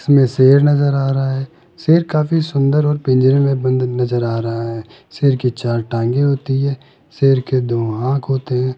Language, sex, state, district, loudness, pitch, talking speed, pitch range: Hindi, male, Rajasthan, Jaipur, -16 LUFS, 135 Hz, 200 wpm, 125-140 Hz